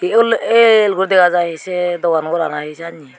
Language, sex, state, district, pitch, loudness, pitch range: Chakma, female, Tripura, Unakoti, 175 Hz, -14 LUFS, 165-205 Hz